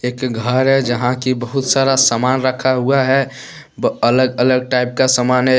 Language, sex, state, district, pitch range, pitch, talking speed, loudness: Hindi, male, Jharkhand, Deoghar, 125-130 Hz, 130 Hz, 180 wpm, -15 LUFS